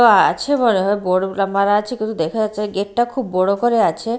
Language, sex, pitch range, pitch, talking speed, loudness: Bengali, female, 195-235 Hz, 205 Hz, 200 wpm, -18 LUFS